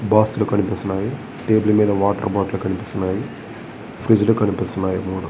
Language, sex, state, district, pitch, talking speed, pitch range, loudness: Telugu, male, Andhra Pradesh, Visakhapatnam, 100 Hz, 135 wpm, 95-110 Hz, -20 LUFS